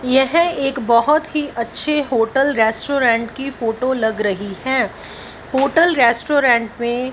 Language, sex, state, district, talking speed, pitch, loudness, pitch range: Hindi, female, Punjab, Fazilka, 135 wpm, 255 Hz, -17 LUFS, 230-280 Hz